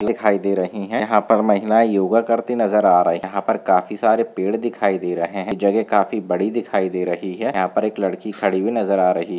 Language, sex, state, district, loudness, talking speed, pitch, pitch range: Hindi, male, Andhra Pradesh, Visakhapatnam, -19 LUFS, 255 wpm, 100 Hz, 95-110 Hz